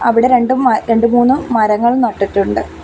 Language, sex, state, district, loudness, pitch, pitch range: Malayalam, female, Kerala, Kollam, -13 LUFS, 235 Hz, 205-250 Hz